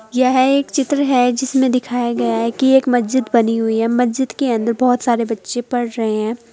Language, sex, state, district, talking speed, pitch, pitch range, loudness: Hindi, female, Uttar Pradesh, Saharanpur, 210 wpm, 245 Hz, 230-260 Hz, -16 LUFS